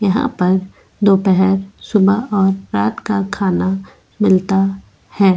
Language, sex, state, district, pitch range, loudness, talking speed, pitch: Hindi, female, Goa, North and South Goa, 190-205 Hz, -16 LUFS, 110 wpm, 195 Hz